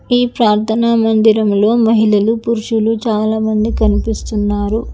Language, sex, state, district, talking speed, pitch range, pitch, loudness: Telugu, female, Telangana, Hyderabad, 95 wpm, 215-225 Hz, 220 Hz, -14 LUFS